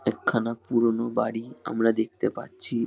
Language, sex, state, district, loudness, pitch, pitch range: Bengali, male, West Bengal, Dakshin Dinajpur, -26 LUFS, 115 Hz, 110-115 Hz